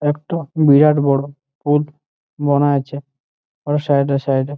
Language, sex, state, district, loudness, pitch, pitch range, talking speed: Bengali, male, West Bengal, Malda, -17 LUFS, 145 Hz, 140-150 Hz, 155 wpm